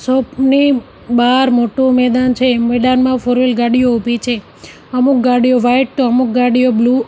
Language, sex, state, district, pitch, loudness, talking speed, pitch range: Gujarati, female, Gujarat, Gandhinagar, 250 Hz, -13 LUFS, 155 wpm, 245-255 Hz